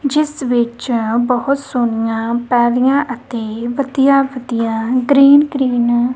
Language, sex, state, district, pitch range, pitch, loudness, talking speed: Punjabi, female, Punjab, Kapurthala, 235-275 Hz, 250 Hz, -15 LUFS, 95 wpm